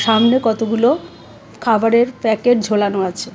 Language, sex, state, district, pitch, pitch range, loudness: Bengali, female, Tripura, West Tripura, 225 Hz, 220-240 Hz, -16 LUFS